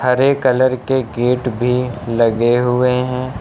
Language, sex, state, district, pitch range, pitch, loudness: Hindi, male, Uttar Pradesh, Lucknow, 120-130 Hz, 125 Hz, -16 LUFS